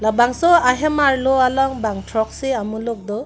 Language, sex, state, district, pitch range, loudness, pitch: Karbi, female, Assam, Karbi Anglong, 220-270 Hz, -18 LUFS, 250 Hz